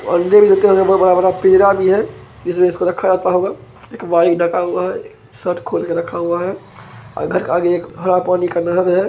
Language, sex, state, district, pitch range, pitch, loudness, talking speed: Hindi, male, Bihar, Begusarai, 175-190 Hz, 180 Hz, -15 LUFS, 185 wpm